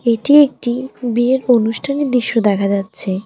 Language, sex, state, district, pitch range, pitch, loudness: Bengali, female, West Bengal, Alipurduar, 220-260 Hz, 240 Hz, -15 LUFS